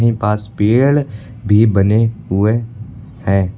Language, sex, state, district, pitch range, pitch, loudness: Hindi, male, Uttar Pradesh, Lucknow, 105-115 Hz, 110 Hz, -15 LUFS